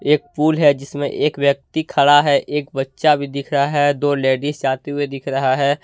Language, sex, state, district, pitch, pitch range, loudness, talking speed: Hindi, male, Jharkhand, Deoghar, 145 Hz, 140-145 Hz, -18 LUFS, 215 wpm